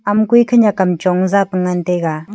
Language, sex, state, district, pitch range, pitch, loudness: Wancho, female, Arunachal Pradesh, Longding, 180-210 Hz, 190 Hz, -14 LUFS